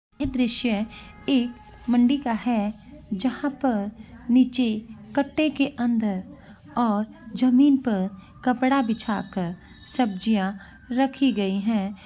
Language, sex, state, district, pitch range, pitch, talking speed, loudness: Hindi, female, Uttar Pradesh, Varanasi, 210-260 Hz, 235 Hz, 115 wpm, -24 LUFS